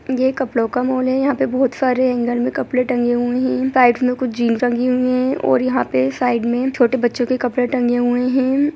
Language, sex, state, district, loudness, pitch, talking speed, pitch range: Hindi, male, Bihar, Gaya, -17 LUFS, 250 Hz, 235 wpm, 240-255 Hz